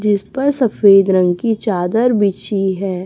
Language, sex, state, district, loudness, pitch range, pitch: Hindi, female, Chhattisgarh, Raipur, -15 LUFS, 190-225 Hz, 200 Hz